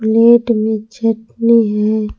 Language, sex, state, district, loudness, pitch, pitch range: Hindi, female, Jharkhand, Palamu, -14 LUFS, 225 Hz, 220-230 Hz